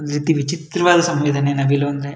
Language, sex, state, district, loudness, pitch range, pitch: Kannada, male, Karnataka, Shimoga, -17 LUFS, 140-165 Hz, 145 Hz